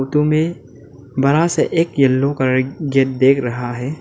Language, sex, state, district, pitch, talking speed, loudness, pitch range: Hindi, male, Arunachal Pradesh, Lower Dibang Valley, 135 Hz, 165 wpm, -17 LUFS, 130-150 Hz